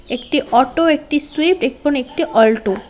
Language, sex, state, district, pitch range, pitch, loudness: Bengali, female, West Bengal, Cooch Behar, 245-305 Hz, 270 Hz, -16 LUFS